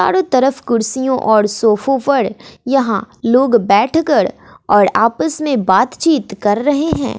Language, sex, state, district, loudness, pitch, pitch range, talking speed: Hindi, female, Bihar, West Champaran, -14 LUFS, 250 Hz, 215-275 Hz, 135 wpm